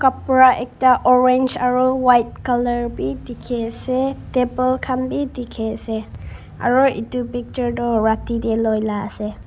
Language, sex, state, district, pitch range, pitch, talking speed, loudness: Nagamese, female, Nagaland, Kohima, 225-255 Hz, 245 Hz, 145 wpm, -19 LUFS